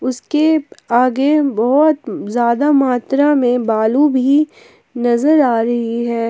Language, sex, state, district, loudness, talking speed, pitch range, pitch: Hindi, female, Jharkhand, Palamu, -15 LUFS, 115 wpm, 235-295 Hz, 260 Hz